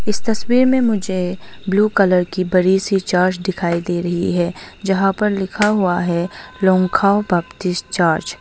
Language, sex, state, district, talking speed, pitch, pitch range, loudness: Hindi, female, Arunachal Pradesh, Longding, 165 wpm, 185 Hz, 180-200 Hz, -17 LUFS